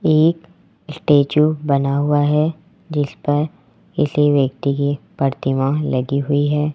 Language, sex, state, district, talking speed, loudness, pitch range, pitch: Hindi, male, Rajasthan, Jaipur, 125 wpm, -18 LUFS, 140-155 Hz, 145 Hz